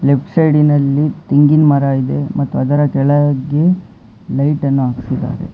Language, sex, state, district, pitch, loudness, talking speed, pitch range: Kannada, male, Karnataka, Bangalore, 145 Hz, -14 LUFS, 110 wpm, 135-150 Hz